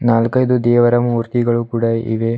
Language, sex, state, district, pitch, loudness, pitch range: Kannada, male, Karnataka, Bidar, 120 Hz, -16 LUFS, 115-120 Hz